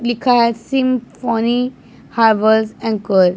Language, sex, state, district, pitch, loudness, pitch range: Hindi, female, Punjab, Pathankot, 230 Hz, -16 LUFS, 220-245 Hz